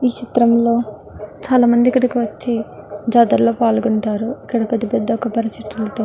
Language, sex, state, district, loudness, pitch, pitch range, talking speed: Telugu, female, Andhra Pradesh, Guntur, -17 LUFS, 230 Hz, 220-240 Hz, 160 wpm